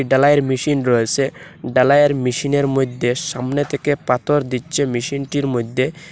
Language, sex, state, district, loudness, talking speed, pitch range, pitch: Bengali, male, Assam, Hailakandi, -18 LUFS, 120 wpm, 125-145 Hz, 135 Hz